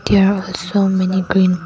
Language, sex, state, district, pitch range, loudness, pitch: English, female, Arunachal Pradesh, Lower Dibang Valley, 185-195 Hz, -16 LUFS, 190 Hz